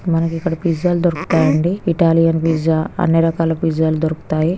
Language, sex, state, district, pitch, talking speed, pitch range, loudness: Telugu, female, Telangana, Karimnagar, 165 Hz, 155 wpm, 160-170 Hz, -16 LUFS